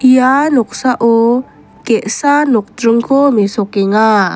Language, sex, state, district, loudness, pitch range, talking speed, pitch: Garo, female, Meghalaya, West Garo Hills, -12 LUFS, 215-260 Hz, 70 wpm, 235 Hz